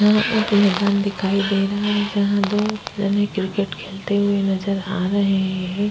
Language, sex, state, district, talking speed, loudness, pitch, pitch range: Hindi, female, Bihar, Vaishali, 175 wpm, -20 LUFS, 200 Hz, 195-205 Hz